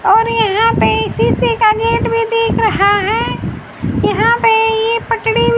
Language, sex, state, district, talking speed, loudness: Hindi, female, Haryana, Charkhi Dadri, 170 wpm, -13 LUFS